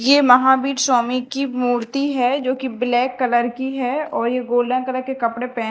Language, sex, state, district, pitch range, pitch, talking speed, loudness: Hindi, female, Madhya Pradesh, Dhar, 245-265 Hz, 255 Hz, 200 wpm, -19 LUFS